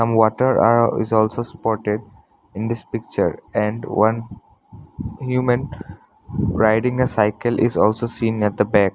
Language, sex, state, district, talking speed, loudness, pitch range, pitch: English, male, Assam, Sonitpur, 140 wpm, -20 LUFS, 105-120 Hz, 110 Hz